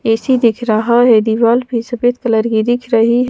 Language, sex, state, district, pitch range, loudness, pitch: Hindi, female, Madhya Pradesh, Bhopal, 225-245 Hz, -13 LUFS, 235 Hz